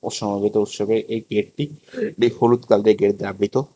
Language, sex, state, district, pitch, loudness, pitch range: Bengali, male, Tripura, West Tripura, 110 Hz, -21 LUFS, 105-130 Hz